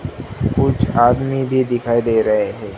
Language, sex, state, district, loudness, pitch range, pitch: Hindi, male, Gujarat, Gandhinagar, -17 LUFS, 115-130 Hz, 120 Hz